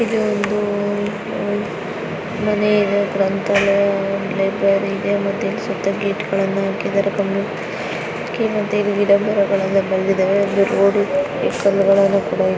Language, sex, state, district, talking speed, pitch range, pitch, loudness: Kannada, female, Karnataka, Chamarajanagar, 105 wpm, 195-205 Hz, 200 Hz, -18 LUFS